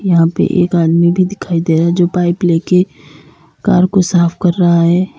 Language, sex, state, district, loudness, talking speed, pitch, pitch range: Hindi, female, Uttar Pradesh, Lalitpur, -12 LUFS, 195 wpm, 175 Hz, 170-180 Hz